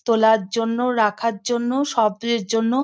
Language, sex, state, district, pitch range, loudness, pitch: Bengali, female, West Bengal, Kolkata, 220-240 Hz, -20 LUFS, 230 Hz